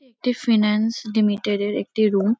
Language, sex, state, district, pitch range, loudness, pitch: Bengali, female, West Bengal, Kolkata, 210-230 Hz, -21 LUFS, 215 Hz